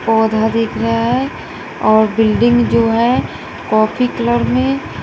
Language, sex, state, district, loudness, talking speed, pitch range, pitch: Hindi, female, Bihar, West Champaran, -14 LUFS, 130 wpm, 210-230 Hz, 220 Hz